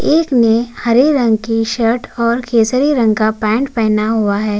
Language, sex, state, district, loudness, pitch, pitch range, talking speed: Hindi, male, Uttarakhand, Tehri Garhwal, -14 LUFS, 230 Hz, 220-245 Hz, 180 wpm